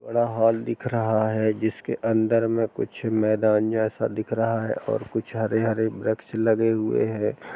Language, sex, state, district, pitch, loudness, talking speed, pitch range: Hindi, male, Uttar Pradesh, Jalaun, 110 Hz, -24 LUFS, 175 wpm, 110-115 Hz